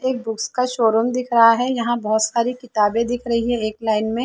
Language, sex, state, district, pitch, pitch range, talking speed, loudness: Hindi, female, Chhattisgarh, Bilaspur, 235 Hz, 225-245 Hz, 255 wpm, -19 LUFS